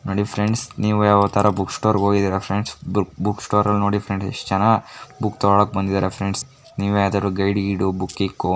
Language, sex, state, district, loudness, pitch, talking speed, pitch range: Kannada, female, Karnataka, Mysore, -20 LUFS, 100 Hz, 180 wpm, 95-105 Hz